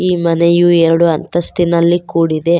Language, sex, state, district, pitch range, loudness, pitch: Kannada, female, Karnataka, Koppal, 165-175 Hz, -12 LUFS, 170 Hz